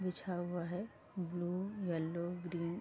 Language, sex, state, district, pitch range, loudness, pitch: Hindi, female, Uttar Pradesh, Varanasi, 170-185 Hz, -41 LUFS, 175 Hz